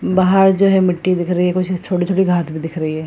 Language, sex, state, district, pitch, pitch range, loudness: Hindi, female, Bihar, Jahanabad, 180 Hz, 175-185 Hz, -16 LUFS